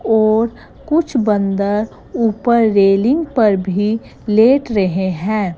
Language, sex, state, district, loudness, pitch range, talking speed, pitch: Hindi, female, Gujarat, Gandhinagar, -15 LUFS, 200-235 Hz, 110 wpm, 215 Hz